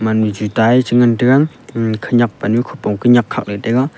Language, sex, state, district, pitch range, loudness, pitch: Wancho, male, Arunachal Pradesh, Longding, 110-125 Hz, -15 LUFS, 120 Hz